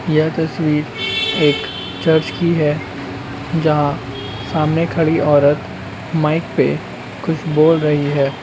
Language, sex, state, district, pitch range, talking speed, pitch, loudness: Hindi, male, Uttarakhand, Uttarkashi, 140-160 Hz, 115 wpm, 150 Hz, -17 LUFS